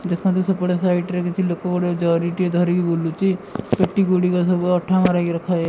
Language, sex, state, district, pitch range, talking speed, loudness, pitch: Odia, female, Odisha, Malkangiri, 175-185 Hz, 200 wpm, -20 LUFS, 180 Hz